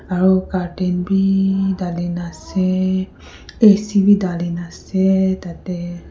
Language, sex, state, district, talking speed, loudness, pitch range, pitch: Nagamese, female, Nagaland, Kohima, 120 wpm, -18 LUFS, 175-195 Hz, 185 Hz